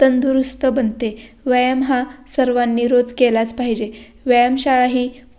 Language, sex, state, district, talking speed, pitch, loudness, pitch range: Marathi, female, Maharashtra, Pune, 120 wpm, 250 Hz, -17 LUFS, 235-260 Hz